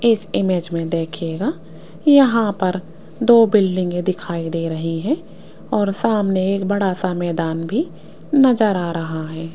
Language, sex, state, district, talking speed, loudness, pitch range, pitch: Hindi, female, Rajasthan, Jaipur, 150 wpm, -19 LUFS, 165-220 Hz, 185 Hz